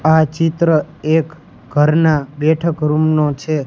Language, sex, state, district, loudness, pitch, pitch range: Gujarati, male, Gujarat, Gandhinagar, -15 LUFS, 155 Hz, 150-160 Hz